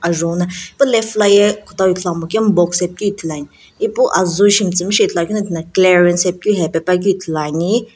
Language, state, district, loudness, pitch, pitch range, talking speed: Sumi, Nagaland, Dimapur, -15 LUFS, 185 Hz, 170-205 Hz, 180 wpm